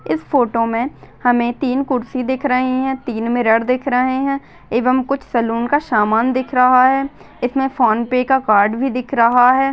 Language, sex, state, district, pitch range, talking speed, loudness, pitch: Hindi, female, Chhattisgarh, Bastar, 235-265 Hz, 190 wpm, -16 LUFS, 255 Hz